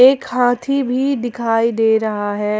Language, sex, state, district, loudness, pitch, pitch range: Hindi, female, Jharkhand, Ranchi, -17 LUFS, 240 Hz, 220-255 Hz